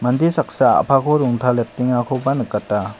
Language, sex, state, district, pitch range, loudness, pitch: Garo, male, Meghalaya, West Garo Hills, 120-135 Hz, -18 LUFS, 125 Hz